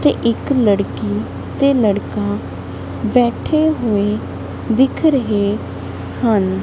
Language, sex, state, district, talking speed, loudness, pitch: Punjabi, female, Punjab, Kapurthala, 90 wpm, -17 LUFS, 210 Hz